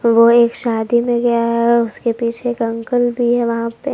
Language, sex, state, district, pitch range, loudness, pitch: Hindi, female, Jharkhand, Palamu, 230-240 Hz, -16 LUFS, 235 Hz